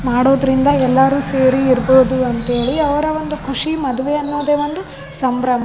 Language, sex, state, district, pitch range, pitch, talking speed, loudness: Kannada, female, Karnataka, Raichur, 255-290 Hz, 265 Hz, 125 wpm, -15 LUFS